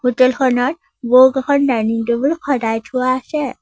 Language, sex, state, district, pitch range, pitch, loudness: Assamese, female, Assam, Sonitpur, 245-275 Hz, 255 Hz, -16 LUFS